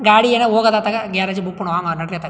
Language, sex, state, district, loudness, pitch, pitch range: Kannada, male, Karnataka, Chamarajanagar, -17 LUFS, 205 Hz, 175-220 Hz